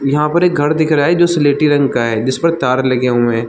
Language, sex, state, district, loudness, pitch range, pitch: Hindi, male, Chhattisgarh, Balrampur, -13 LUFS, 125-155 Hz, 145 Hz